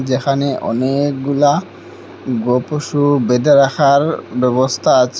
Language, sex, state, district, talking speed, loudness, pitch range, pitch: Bengali, male, Assam, Hailakandi, 90 wpm, -15 LUFS, 125-145 Hz, 140 Hz